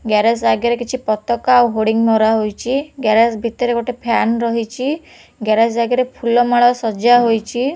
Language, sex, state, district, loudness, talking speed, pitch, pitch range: Odia, female, Odisha, Khordha, -16 LUFS, 145 wpm, 235 Hz, 225-245 Hz